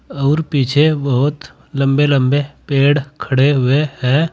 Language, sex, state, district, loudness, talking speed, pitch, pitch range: Hindi, male, Uttar Pradesh, Saharanpur, -15 LUFS, 125 wpm, 140 Hz, 135-145 Hz